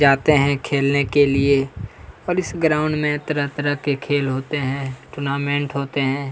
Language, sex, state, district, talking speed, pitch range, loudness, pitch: Hindi, male, Chhattisgarh, Kabirdham, 170 wpm, 135-145 Hz, -20 LUFS, 140 Hz